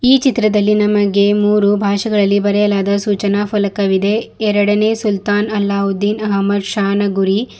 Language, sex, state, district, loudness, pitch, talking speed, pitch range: Kannada, female, Karnataka, Bidar, -15 LUFS, 205 Hz, 105 wpm, 200-210 Hz